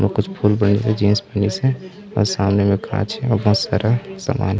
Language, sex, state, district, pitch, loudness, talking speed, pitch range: Chhattisgarhi, male, Chhattisgarh, Raigarh, 105 Hz, -19 LUFS, 220 wpm, 100-115 Hz